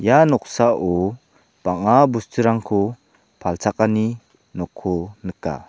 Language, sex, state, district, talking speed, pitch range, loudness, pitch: Garo, male, Meghalaya, South Garo Hills, 65 wpm, 90-115 Hz, -20 LUFS, 105 Hz